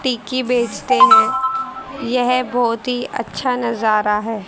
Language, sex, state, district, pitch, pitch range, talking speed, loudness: Hindi, female, Haryana, Rohtak, 250 Hz, 230-260 Hz, 120 wpm, -17 LUFS